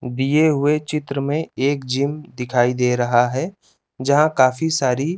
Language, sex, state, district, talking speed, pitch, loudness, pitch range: Hindi, male, Chandigarh, Chandigarh, 160 wpm, 140 Hz, -19 LUFS, 125-150 Hz